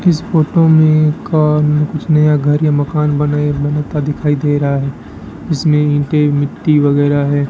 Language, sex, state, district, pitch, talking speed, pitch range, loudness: Hindi, male, Rajasthan, Bikaner, 150 Hz, 160 wpm, 145-155 Hz, -13 LUFS